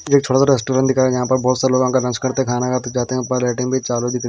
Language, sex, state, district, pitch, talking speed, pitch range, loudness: Hindi, male, Himachal Pradesh, Shimla, 130 Hz, 335 wpm, 125-130 Hz, -18 LUFS